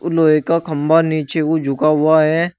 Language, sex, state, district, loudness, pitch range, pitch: Hindi, male, Uttar Pradesh, Shamli, -15 LUFS, 155-165 Hz, 155 Hz